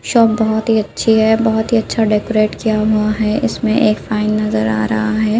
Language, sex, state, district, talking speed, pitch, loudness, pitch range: Hindi, female, Uttar Pradesh, Budaun, 210 wpm, 220 Hz, -15 LUFS, 215-225 Hz